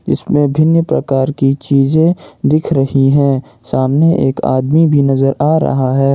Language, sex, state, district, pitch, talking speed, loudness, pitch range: Hindi, male, Jharkhand, Ranchi, 140 Hz, 155 wpm, -13 LUFS, 135-155 Hz